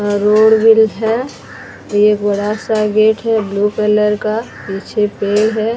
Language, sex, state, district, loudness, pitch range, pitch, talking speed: Hindi, female, Odisha, Sambalpur, -14 LUFS, 205-220 Hz, 215 Hz, 125 wpm